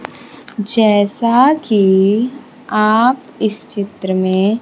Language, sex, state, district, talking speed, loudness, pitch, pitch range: Hindi, female, Bihar, Kaimur, 80 wpm, -14 LUFS, 215 Hz, 200-245 Hz